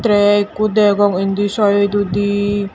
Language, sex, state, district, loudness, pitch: Chakma, female, Tripura, Dhalai, -15 LUFS, 205 Hz